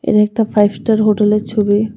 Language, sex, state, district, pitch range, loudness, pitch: Bengali, female, Tripura, West Tripura, 210-220 Hz, -14 LUFS, 210 Hz